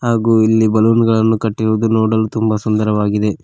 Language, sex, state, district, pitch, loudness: Kannada, male, Karnataka, Koppal, 110 Hz, -14 LUFS